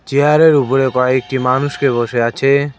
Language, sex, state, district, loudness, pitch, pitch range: Bengali, male, West Bengal, Cooch Behar, -14 LUFS, 135 Hz, 125-145 Hz